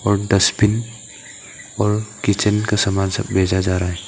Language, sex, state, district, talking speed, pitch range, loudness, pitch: Hindi, male, Arunachal Pradesh, Papum Pare, 160 wpm, 95-105 Hz, -18 LUFS, 105 Hz